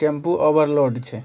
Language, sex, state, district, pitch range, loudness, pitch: Maithili, male, Bihar, Supaul, 125-155 Hz, -19 LUFS, 145 Hz